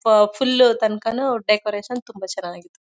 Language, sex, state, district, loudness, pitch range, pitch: Kannada, female, Karnataka, Mysore, -20 LUFS, 210-245 Hz, 220 Hz